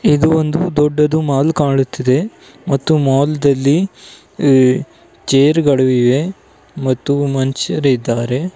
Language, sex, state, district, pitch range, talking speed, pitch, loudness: Kannada, male, Karnataka, Bidar, 135-155 Hz, 90 wpm, 140 Hz, -15 LUFS